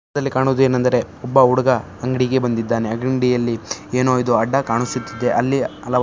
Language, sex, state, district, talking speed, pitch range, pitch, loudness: Kannada, male, Karnataka, Shimoga, 130 wpm, 120-130 Hz, 125 Hz, -18 LUFS